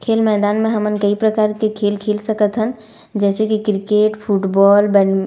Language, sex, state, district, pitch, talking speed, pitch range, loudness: Chhattisgarhi, female, Chhattisgarh, Raigarh, 210 Hz, 195 wpm, 205-220 Hz, -16 LUFS